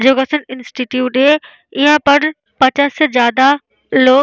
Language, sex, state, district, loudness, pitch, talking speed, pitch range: Hindi, female, Bihar, Vaishali, -13 LUFS, 270 Hz, 140 wpm, 255-295 Hz